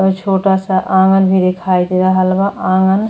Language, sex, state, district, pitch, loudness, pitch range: Bhojpuri, female, Uttar Pradesh, Deoria, 190 Hz, -13 LUFS, 185-190 Hz